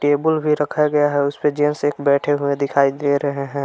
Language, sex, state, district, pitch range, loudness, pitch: Hindi, male, Jharkhand, Palamu, 140-150 Hz, -18 LUFS, 145 Hz